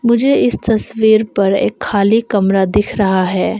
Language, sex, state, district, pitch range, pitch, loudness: Hindi, female, Arunachal Pradesh, Longding, 195-225 Hz, 210 Hz, -14 LUFS